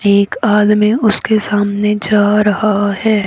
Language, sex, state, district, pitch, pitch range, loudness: Hindi, female, Haryana, Rohtak, 210 Hz, 205-215 Hz, -13 LUFS